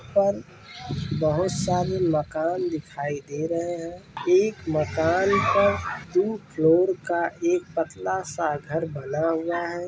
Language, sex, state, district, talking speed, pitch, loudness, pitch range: Hindi, male, Bihar, Kishanganj, 125 wpm, 170 Hz, -25 LUFS, 155-180 Hz